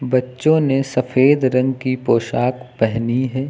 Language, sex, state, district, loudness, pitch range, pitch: Hindi, male, Uttar Pradesh, Lucknow, -18 LUFS, 125-130 Hz, 130 Hz